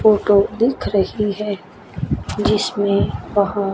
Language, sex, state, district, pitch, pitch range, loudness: Hindi, female, Chandigarh, Chandigarh, 205 Hz, 200-210 Hz, -19 LUFS